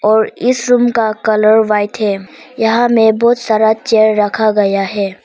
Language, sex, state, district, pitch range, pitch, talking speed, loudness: Hindi, female, Arunachal Pradesh, Papum Pare, 210-230 Hz, 220 Hz, 170 wpm, -12 LUFS